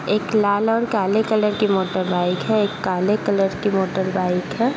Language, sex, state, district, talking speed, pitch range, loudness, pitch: Hindi, female, Uttar Pradesh, Muzaffarnagar, 200 wpm, 185-215 Hz, -20 LUFS, 200 Hz